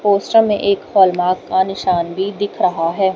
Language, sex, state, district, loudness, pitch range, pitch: Hindi, female, Haryana, Rohtak, -16 LUFS, 185-205 Hz, 195 Hz